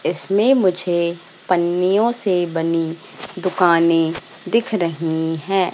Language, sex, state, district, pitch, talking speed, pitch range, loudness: Hindi, female, Madhya Pradesh, Katni, 175 Hz, 95 wpm, 165-190 Hz, -18 LUFS